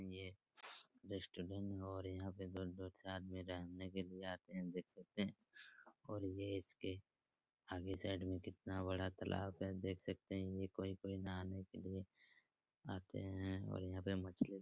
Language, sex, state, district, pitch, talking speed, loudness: Hindi, male, Bihar, Araria, 95 Hz, 170 wpm, -48 LUFS